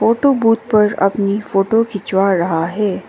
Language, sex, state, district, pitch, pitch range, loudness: Hindi, female, Sikkim, Gangtok, 205 Hz, 195-225 Hz, -15 LUFS